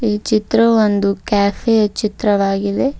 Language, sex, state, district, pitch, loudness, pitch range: Kannada, female, Karnataka, Bidar, 210 Hz, -16 LUFS, 200-225 Hz